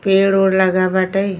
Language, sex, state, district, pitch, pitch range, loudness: Bhojpuri, female, Uttar Pradesh, Ghazipur, 190 Hz, 185-195 Hz, -15 LUFS